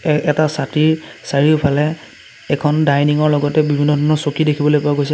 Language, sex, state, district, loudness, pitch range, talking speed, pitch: Assamese, male, Assam, Sonitpur, -16 LUFS, 145-155 Hz, 150 wpm, 150 Hz